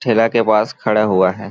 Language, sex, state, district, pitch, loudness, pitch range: Hindi, male, Chhattisgarh, Balrampur, 110 Hz, -15 LUFS, 100-115 Hz